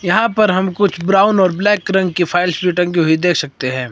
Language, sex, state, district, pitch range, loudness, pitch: Hindi, male, Himachal Pradesh, Shimla, 170-195 Hz, -15 LUFS, 180 Hz